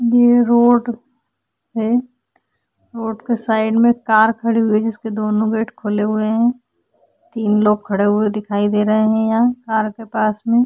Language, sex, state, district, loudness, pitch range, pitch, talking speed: Hindi, female, Uttarakhand, Tehri Garhwal, -17 LUFS, 215-235 Hz, 225 Hz, 165 wpm